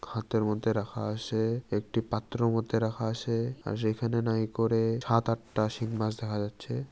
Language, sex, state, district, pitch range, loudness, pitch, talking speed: Bengali, male, West Bengal, Jalpaiguri, 110-115 Hz, -30 LUFS, 115 Hz, 165 wpm